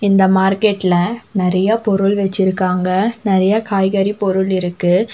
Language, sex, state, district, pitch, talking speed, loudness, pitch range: Tamil, female, Tamil Nadu, Nilgiris, 195 Hz, 105 wpm, -15 LUFS, 185-205 Hz